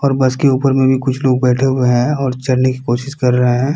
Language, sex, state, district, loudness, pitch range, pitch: Hindi, male, Bihar, Kishanganj, -14 LUFS, 125-135 Hz, 130 Hz